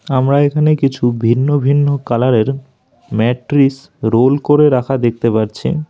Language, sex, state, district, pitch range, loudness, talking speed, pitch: Bengali, male, West Bengal, Alipurduar, 120-145 Hz, -14 LUFS, 120 wpm, 135 Hz